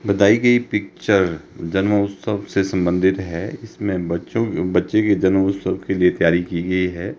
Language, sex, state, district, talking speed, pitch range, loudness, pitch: Hindi, male, Himachal Pradesh, Shimla, 150 wpm, 90-100 Hz, -19 LUFS, 95 Hz